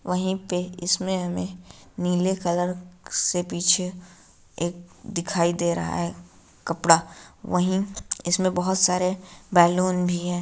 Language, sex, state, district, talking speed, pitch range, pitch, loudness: Hindi, female, Bihar, Araria, 120 wpm, 170-180 Hz, 180 Hz, -24 LUFS